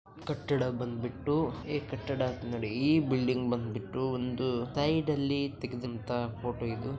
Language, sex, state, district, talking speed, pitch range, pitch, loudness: Kannada, male, Karnataka, Bijapur, 120 wpm, 120-140 Hz, 125 Hz, -32 LUFS